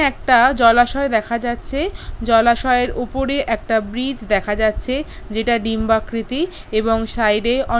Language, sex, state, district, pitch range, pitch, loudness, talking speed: Bengali, female, West Bengal, Kolkata, 225-260 Hz, 235 Hz, -18 LUFS, 115 wpm